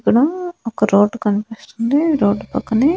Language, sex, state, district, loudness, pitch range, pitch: Telugu, female, Andhra Pradesh, Annamaya, -17 LUFS, 210-295 Hz, 230 Hz